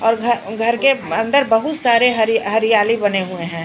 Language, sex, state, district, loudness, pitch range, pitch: Hindi, female, Bihar, Patna, -16 LUFS, 210-240 Hz, 225 Hz